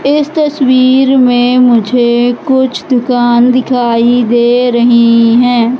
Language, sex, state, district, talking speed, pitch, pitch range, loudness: Hindi, female, Madhya Pradesh, Katni, 105 wpm, 245 Hz, 240-255 Hz, -9 LUFS